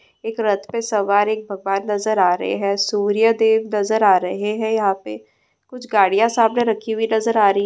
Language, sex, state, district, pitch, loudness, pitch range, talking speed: Hindi, female, West Bengal, Purulia, 210 Hz, -18 LUFS, 200-220 Hz, 210 wpm